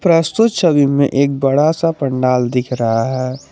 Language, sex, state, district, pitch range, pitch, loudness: Hindi, male, Jharkhand, Garhwa, 130-160 Hz, 140 Hz, -15 LUFS